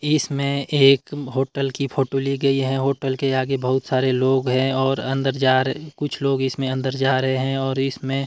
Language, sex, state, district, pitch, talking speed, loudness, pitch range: Hindi, male, Himachal Pradesh, Shimla, 135 Hz, 205 wpm, -21 LUFS, 130-135 Hz